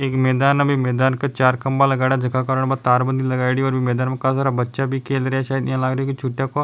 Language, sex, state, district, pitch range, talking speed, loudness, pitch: Rajasthani, male, Rajasthan, Nagaur, 130-135 Hz, 260 wpm, -19 LUFS, 130 Hz